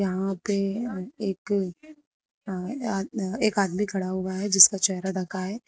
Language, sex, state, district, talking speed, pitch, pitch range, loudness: Hindi, female, Uttar Pradesh, Lucknow, 160 wpm, 195 Hz, 190-205 Hz, -25 LUFS